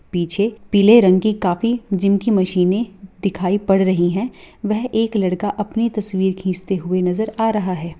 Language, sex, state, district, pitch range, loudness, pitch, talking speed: Hindi, female, Bihar, Purnia, 185-215 Hz, -18 LUFS, 200 Hz, 170 wpm